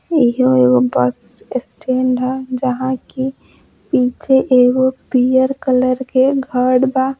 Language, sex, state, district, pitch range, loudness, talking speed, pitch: Bhojpuri, female, Uttar Pradesh, Gorakhpur, 250-260 Hz, -15 LUFS, 115 wpm, 255 Hz